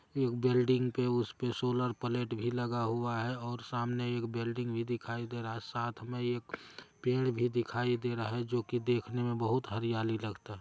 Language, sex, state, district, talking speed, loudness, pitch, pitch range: Hindi, male, Bihar, Araria, 200 wpm, -34 LUFS, 120 Hz, 115-125 Hz